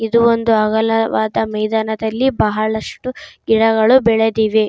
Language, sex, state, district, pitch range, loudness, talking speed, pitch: Kannada, female, Karnataka, Raichur, 220-230 Hz, -15 LUFS, 90 wpm, 220 Hz